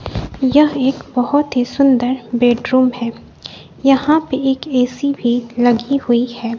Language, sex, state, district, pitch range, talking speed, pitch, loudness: Hindi, female, Bihar, West Champaran, 240-275 Hz, 135 wpm, 255 Hz, -16 LUFS